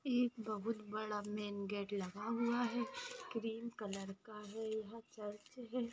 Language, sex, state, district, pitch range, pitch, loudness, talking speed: Hindi, female, Maharashtra, Aurangabad, 210-235 Hz, 220 Hz, -43 LUFS, 150 wpm